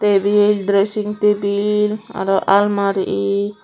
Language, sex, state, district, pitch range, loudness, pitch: Chakma, female, Tripura, Unakoti, 195-210 Hz, -17 LUFS, 200 Hz